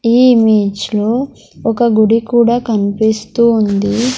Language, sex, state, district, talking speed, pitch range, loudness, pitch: Telugu, female, Andhra Pradesh, Sri Satya Sai, 100 wpm, 215-240 Hz, -13 LUFS, 225 Hz